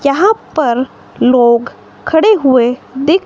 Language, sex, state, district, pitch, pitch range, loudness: Hindi, female, Himachal Pradesh, Shimla, 265 Hz, 245-325 Hz, -12 LUFS